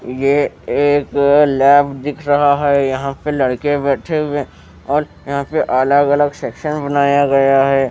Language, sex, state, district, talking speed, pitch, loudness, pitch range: Hindi, male, Bihar, West Champaran, 160 wpm, 140 Hz, -15 LUFS, 135-145 Hz